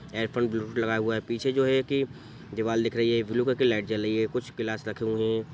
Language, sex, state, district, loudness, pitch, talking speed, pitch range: Hindi, male, Bihar, Sitamarhi, -27 LUFS, 115 Hz, 290 wpm, 110-120 Hz